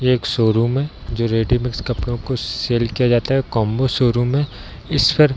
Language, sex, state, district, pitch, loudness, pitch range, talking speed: Hindi, male, Bihar, Darbhanga, 120 Hz, -19 LUFS, 115-130 Hz, 200 wpm